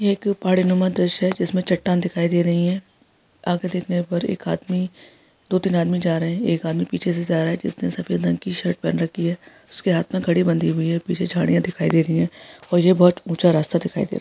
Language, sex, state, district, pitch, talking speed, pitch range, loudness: Hindi, female, Jharkhand, Sahebganj, 175 Hz, 250 wpm, 165-185 Hz, -21 LUFS